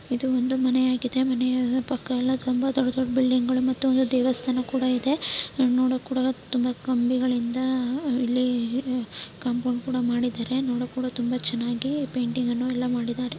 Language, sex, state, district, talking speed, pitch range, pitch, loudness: Kannada, female, Karnataka, Shimoga, 125 wpm, 245-260 Hz, 255 Hz, -25 LUFS